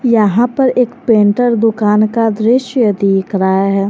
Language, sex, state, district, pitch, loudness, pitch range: Hindi, female, Jharkhand, Garhwa, 225 Hz, -12 LUFS, 205-240 Hz